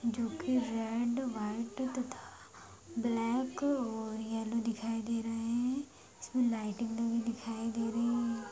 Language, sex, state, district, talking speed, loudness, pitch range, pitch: Hindi, female, Jharkhand, Sahebganj, 135 wpm, -35 LUFS, 225-240 Hz, 230 Hz